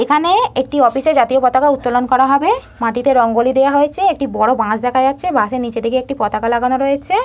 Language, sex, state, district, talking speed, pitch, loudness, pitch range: Bengali, female, West Bengal, North 24 Parganas, 205 wpm, 260 Hz, -14 LUFS, 245-285 Hz